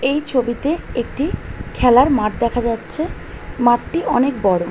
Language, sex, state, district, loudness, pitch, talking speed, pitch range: Bengali, female, West Bengal, Malda, -18 LUFS, 245 Hz, 125 wpm, 235-285 Hz